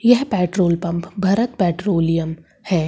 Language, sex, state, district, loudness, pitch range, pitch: Hindi, female, Madhya Pradesh, Umaria, -19 LUFS, 170-205 Hz, 180 Hz